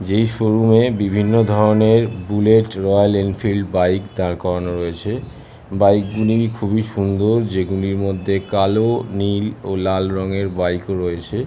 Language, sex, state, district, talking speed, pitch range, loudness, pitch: Bengali, male, West Bengal, Jhargram, 130 wpm, 95-110 Hz, -18 LUFS, 100 Hz